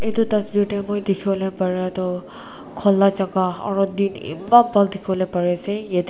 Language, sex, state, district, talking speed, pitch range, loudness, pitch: Nagamese, female, Nagaland, Kohima, 165 wpm, 185-205 Hz, -20 LUFS, 195 Hz